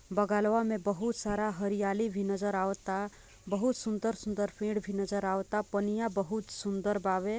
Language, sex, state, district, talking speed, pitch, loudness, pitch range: Bhojpuri, female, Bihar, Gopalganj, 155 wpm, 205 Hz, -32 LUFS, 200-215 Hz